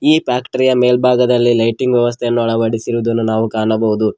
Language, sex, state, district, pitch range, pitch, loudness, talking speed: Kannada, male, Karnataka, Koppal, 115-125 Hz, 120 Hz, -14 LUFS, 115 wpm